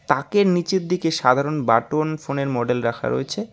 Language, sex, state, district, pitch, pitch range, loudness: Bengali, male, West Bengal, Alipurduar, 145 Hz, 120-165 Hz, -21 LUFS